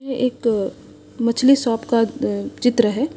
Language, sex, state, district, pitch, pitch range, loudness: Hindi, female, Odisha, Sambalpur, 235 Hz, 225-255 Hz, -19 LUFS